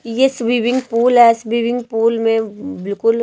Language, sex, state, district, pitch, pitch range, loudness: Hindi, female, Himachal Pradesh, Shimla, 230 Hz, 225-240 Hz, -16 LUFS